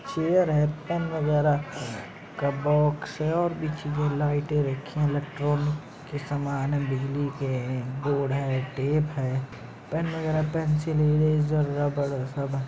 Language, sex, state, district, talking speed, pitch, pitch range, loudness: Hindi, male, Uttar Pradesh, Jyotiba Phule Nagar, 135 wpm, 145 Hz, 140-155 Hz, -27 LUFS